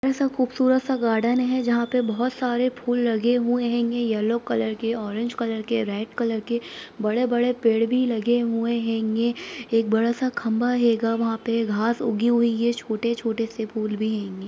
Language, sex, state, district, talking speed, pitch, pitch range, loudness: Hindi, female, Bihar, Saran, 180 wpm, 235 Hz, 225-245 Hz, -23 LUFS